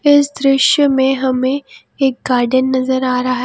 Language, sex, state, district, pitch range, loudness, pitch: Hindi, female, Jharkhand, Palamu, 255-275 Hz, -14 LUFS, 260 Hz